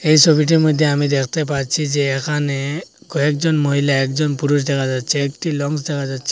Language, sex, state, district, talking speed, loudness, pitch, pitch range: Bengali, male, Assam, Hailakandi, 170 wpm, -17 LUFS, 145 Hz, 140-155 Hz